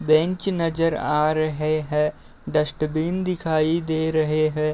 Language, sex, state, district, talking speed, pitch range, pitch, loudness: Hindi, male, Uttar Pradesh, Deoria, 125 wpm, 155-165 Hz, 155 Hz, -23 LUFS